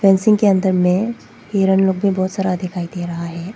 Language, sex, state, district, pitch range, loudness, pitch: Hindi, female, Arunachal Pradesh, Papum Pare, 180-200 Hz, -17 LUFS, 190 Hz